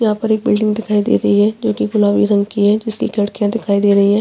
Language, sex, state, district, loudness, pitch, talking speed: Hindi, female, Chhattisgarh, Bastar, -15 LUFS, 205 Hz, 285 wpm